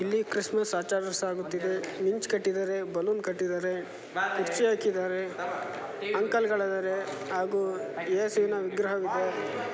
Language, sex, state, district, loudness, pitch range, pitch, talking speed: Kannada, male, Karnataka, Chamarajanagar, -30 LUFS, 185-210 Hz, 195 Hz, 85 wpm